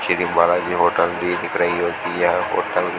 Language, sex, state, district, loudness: Hindi, male, Rajasthan, Bikaner, -19 LUFS